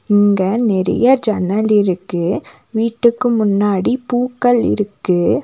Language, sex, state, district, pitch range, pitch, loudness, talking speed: Tamil, female, Tamil Nadu, Nilgiris, 195-240 Hz, 210 Hz, -16 LUFS, 90 wpm